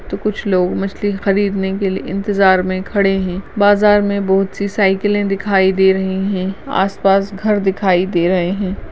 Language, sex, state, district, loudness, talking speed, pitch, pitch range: Hindi, female, Uttarakhand, Uttarkashi, -16 LUFS, 175 wpm, 195 Hz, 190-200 Hz